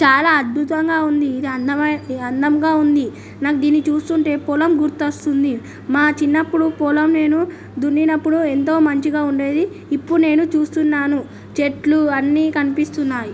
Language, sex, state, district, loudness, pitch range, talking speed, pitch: Telugu, female, Telangana, Nalgonda, -17 LUFS, 285-315 Hz, 125 wpm, 300 Hz